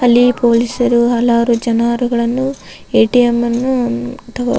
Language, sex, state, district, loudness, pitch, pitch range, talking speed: Kannada, female, Karnataka, Raichur, -14 LUFS, 240 Hz, 235-245 Hz, 105 wpm